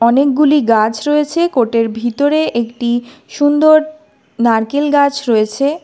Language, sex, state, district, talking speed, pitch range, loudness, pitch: Bengali, female, Karnataka, Bangalore, 100 wpm, 230-295 Hz, -13 LUFS, 275 Hz